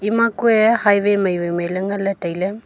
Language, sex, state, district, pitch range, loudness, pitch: Wancho, female, Arunachal Pradesh, Longding, 185-220 Hz, -18 LUFS, 200 Hz